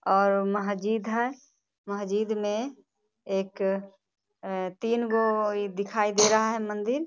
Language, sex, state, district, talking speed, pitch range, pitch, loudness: Hindi, female, Bihar, Muzaffarpur, 125 wpm, 200-225 Hz, 210 Hz, -27 LUFS